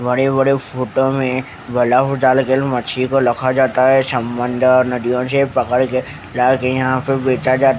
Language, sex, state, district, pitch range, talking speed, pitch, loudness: Hindi, male, Haryana, Charkhi Dadri, 125-135 Hz, 155 wpm, 130 Hz, -16 LUFS